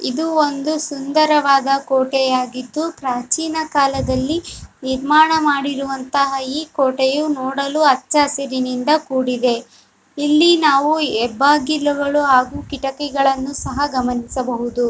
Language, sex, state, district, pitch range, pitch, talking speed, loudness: Kannada, female, Karnataka, Bellary, 260-300 Hz, 275 Hz, 85 wpm, -17 LUFS